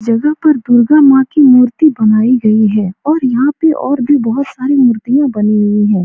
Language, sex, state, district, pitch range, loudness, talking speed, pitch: Hindi, female, Bihar, Supaul, 220-285 Hz, -10 LUFS, 190 wpm, 255 Hz